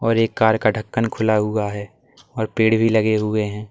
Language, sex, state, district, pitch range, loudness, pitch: Hindi, male, Uttar Pradesh, Lalitpur, 105-115 Hz, -19 LUFS, 110 Hz